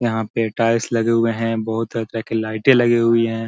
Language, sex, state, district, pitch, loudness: Hindi, male, Bihar, Gaya, 115 Hz, -19 LUFS